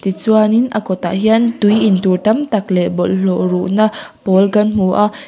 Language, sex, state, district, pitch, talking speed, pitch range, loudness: Mizo, female, Mizoram, Aizawl, 210 Hz, 170 wpm, 185-215 Hz, -14 LUFS